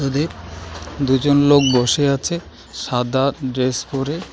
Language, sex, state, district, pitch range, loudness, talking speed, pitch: Bengali, male, West Bengal, Alipurduar, 125-145 Hz, -18 LUFS, 95 wpm, 135 Hz